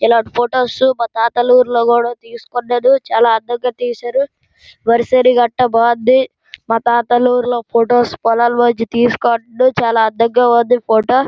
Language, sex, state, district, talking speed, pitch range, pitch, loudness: Telugu, female, Andhra Pradesh, Srikakulam, 130 wpm, 230-245 Hz, 240 Hz, -14 LUFS